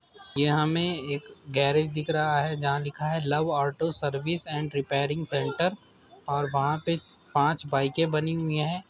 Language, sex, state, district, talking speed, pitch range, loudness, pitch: Hindi, male, Uttar Pradesh, Jyotiba Phule Nagar, 160 wpm, 140-160 Hz, -27 LUFS, 150 Hz